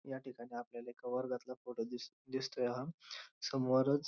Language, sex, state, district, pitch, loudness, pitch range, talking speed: Marathi, male, Maharashtra, Dhule, 130 Hz, -41 LUFS, 120-130 Hz, 130 wpm